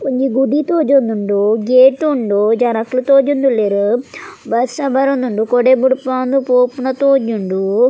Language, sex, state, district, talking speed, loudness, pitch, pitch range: Tulu, female, Karnataka, Dakshina Kannada, 100 wpm, -14 LUFS, 255 Hz, 225-270 Hz